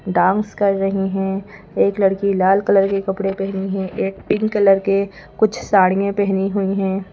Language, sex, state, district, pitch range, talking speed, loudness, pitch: Hindi, female, Madhya Pradesh, Bhopal, 195-200 Hz, 175 wpm, -18 LUFS, 195 Hz